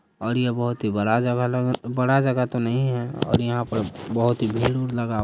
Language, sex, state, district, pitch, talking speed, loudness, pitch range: Hindi, male, Bihar, Saharsa, 120 Hz, 230 wpm, -23 LUFS, 115-125 Hz